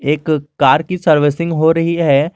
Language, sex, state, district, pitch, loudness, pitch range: Hindi, male, Jharkhand, Garhwa, 155 Hz, -14 LUFS, 145-165 Hz